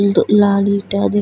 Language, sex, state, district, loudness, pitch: Bhojpuri, female, Uttar Pradesh, Deoria, -14 LUFS, 200 Hz